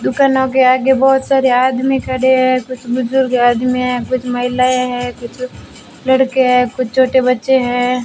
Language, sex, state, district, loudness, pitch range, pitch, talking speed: Hindi, female, Rajasthan, Bikaner, -14 LUFS, 250-260 Hz, 255 Hz, 165 wpm